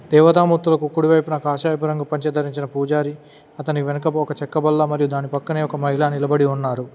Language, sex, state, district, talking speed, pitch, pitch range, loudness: Telugu, male, Telangana, Mahabubabad, 165 wpm, 150 Hz, 145-155 Hz, -19 LUFS